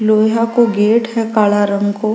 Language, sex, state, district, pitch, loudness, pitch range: Rajasthani, female, Rajasthan, Nagaur, 215 Hz, -14 LUFS, 205-225 Hz